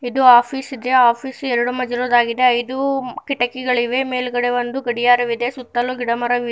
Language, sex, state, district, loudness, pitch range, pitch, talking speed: Kannada, female, Karnataka, Bidar, -18 LUFS, 240-255 Hz, 245 Hz, 145 wpm